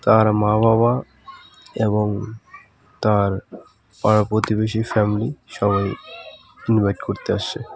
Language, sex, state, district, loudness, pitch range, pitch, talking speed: Bengali, male, West Bengal, Alipurduar, -20 LUFS, 105-115 Hz, 110 Hz, 100 wpm